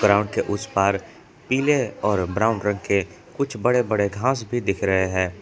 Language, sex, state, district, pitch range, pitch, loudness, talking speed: Hindi, male, Jharkhand, Palamu, 100-120 Hz, 105 Hz, -22 LUFS, 190 wpm